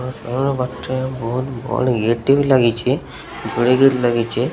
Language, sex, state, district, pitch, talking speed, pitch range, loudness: Odia, male, Odisha, Sambalpur, 125 Hz, 80 wpm, 120-130 Hz, -18 LUFS